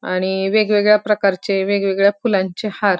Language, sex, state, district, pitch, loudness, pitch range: Marathi, female, Maharashtra, Pune, 200 Hz, -17 LUFS, 190-210 Hz